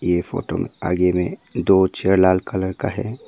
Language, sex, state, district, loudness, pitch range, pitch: Hindi, male, Arunachal Pradesh, Papum Pare, -20 LUFS, 90-105 Hz, 95 Hz